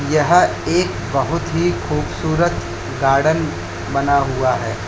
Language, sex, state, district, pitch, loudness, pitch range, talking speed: Hindi, male, Uttar Pradesh, Lalitpur, 140 Hz, -18 LUFS, 130-160 Hz, 110 wpm